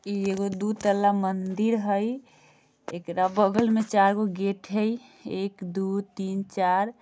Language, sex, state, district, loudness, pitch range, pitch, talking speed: Bajjika, female, Bihar, Vaishali, -26 LUFS, 190-210 Hz, 200 Hz, 135 wpm